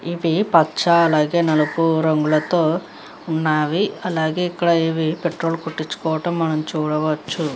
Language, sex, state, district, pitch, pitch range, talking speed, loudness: Telugu, female, Andhra Pradesh, Krishna, 160 Hz, 155-170 Hz, 85 wpm, -19 LUFS